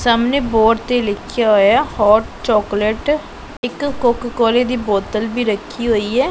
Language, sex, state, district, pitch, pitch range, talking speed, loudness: Punjabi, male, Punjab, Pathankot, 230 Hz, 215-245 Hz, 150 wpm, -16 LUFS